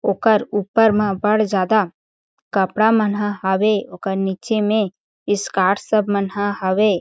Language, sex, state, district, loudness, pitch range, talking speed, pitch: Chhattisgarhi, female, Chhattisgarh, Jashpur, -19 LUFS, 195-215 Hz, 130 wpm, 205 Hz